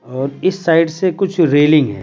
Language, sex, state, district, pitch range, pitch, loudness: Hindi, male, Bihar, Patna, 145-185 Hz, 165 Hz, -14 LUFS